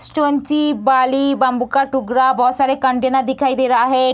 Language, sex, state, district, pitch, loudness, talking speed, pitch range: Hindi, female, Bihar, Sitamarhi, 265 Hz, -16 LUFS, 160 wpm, 255-275 Hz